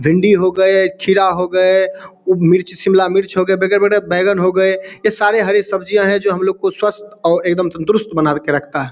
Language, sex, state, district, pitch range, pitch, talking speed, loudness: Hindi, male, Bihar, Samastipur, 180-200 Hz, 190 Hz, 220 wpm, -14 LUFS